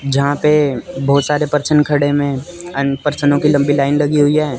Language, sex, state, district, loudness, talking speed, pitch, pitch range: Hindi, male, Chandigarh, Chandigarh, -15 LUFS, 195 wpm, 145 Hz, 140-150 Hz